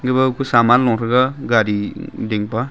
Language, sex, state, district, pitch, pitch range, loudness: Wancho, male, Arunachal Pradesh, Longding, 120 Hz, 115-130 Hz, -17 LUFS